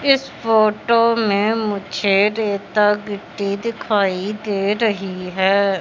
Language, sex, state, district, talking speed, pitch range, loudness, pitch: Hindi, female, Madhya Pradesh, Katni, 105 wpm, 200-220 Hz, -18 LUFS, 205 Hz